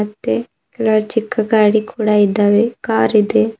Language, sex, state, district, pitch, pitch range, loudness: Kannada, female, Karnataka, Bidar, 215 Hz, 205-220 Hz, -15 LUFS